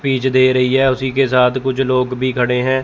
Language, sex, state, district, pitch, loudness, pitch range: Hindi, male, Chandigarh, Chandigarh, 130 Hz, -15 LUFS, 125-130 Hz